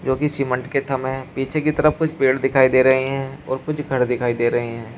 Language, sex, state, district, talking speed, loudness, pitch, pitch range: Hindi, male, Uttar Pradesh, Shamli, 255 wpm, -20 LUFS, 130 Hz, 130-140 Hz